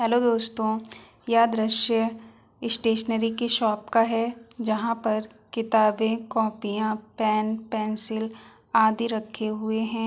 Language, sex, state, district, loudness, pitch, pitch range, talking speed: Hindi, female, Uttar Pradesh, Hamirpur, -25 LUFS, 225 Hz, 220-230 Hz, 115 wpm